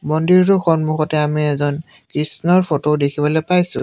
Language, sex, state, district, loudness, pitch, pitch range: Assamese, male, Assam, Sonitpur, -16 LUFS, 155 Hz, 150-175 Hz